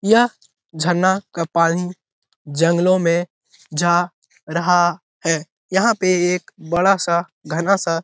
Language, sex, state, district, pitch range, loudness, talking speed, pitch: Hindi, male, Bihar, Jahanabad, 165-185 Hz, -19 LUFS, 120 wpm, 175 Hz